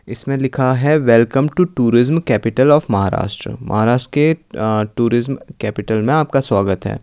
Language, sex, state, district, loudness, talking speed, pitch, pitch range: Hindi, male, Uttar Pradesh, Lucknow, -16 LUFS, 155 wpm, 125 Hz, 110-140 Hz